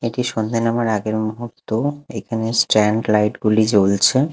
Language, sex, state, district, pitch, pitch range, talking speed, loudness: Bengali, male, Odisha, Khordha, 110 Hz, 110-120 Hz, 140 wpm, -18 LUFS